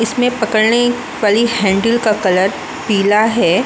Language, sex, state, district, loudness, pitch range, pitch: Hindi, female, Bihar, Muzaffarpur, -14 LUFS, 205-240 Hz, 220 Hz